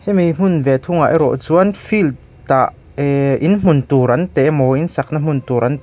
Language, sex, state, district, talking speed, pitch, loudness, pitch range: Mizo, male, Mizoram, Aizawl, 195 wpm, 155 Hz, -15 LUFS, 135-175 Hz